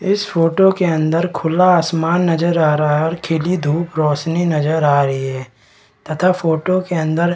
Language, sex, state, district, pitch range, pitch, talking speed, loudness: Hindi, male, Bihar, Kishanganj, 155-175 Hz, 165 Hz, 185 wpm, -16 LUFS